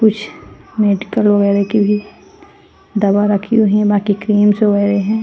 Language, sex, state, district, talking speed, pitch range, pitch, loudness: Hindi, female, Haryana, Charkhi Dadri, 160 wpm, 205-215 Hz, 205 Hz, -14 LUFS